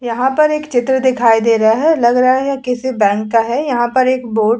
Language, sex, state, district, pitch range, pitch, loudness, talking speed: Hindi, female, Uttar Pradesh, Muzaffarnagar, 230-260 Hz, 245 Hz, -14 LUFS, 260 wpm